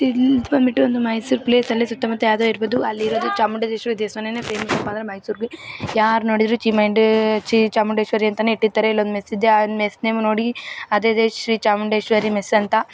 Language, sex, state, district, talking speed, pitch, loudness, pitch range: Kannada, female, Karnataka, Mysore, 155 wpm, 220 Hz, -19 LUFS, 215-230 Hz